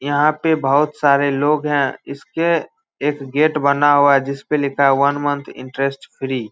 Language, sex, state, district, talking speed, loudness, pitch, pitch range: Hindi, male, Bihar, Samastipur, 195 wpm, -17 LUFS, 145 Hz, 140-150 Hz